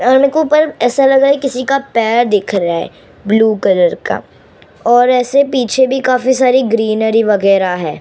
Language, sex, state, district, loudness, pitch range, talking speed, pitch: Hindi, female, Maharashtra, Mumbai Suburban, -12 LUFS, 215-270 Hz, 195 wpm, 245 Hz